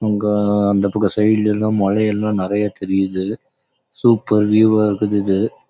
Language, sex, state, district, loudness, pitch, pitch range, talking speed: Tamil, male, Karnataka, Chamarajanagar, -17 LUFS, 105 Hz, 100-105 Hz, 125 wpm